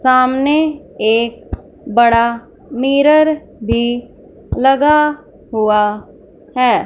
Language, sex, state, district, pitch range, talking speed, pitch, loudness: Hindi, female, Punjab, Fazilka, 230-290 Hz, 70 wpm, 255 Hz, -14 LUFS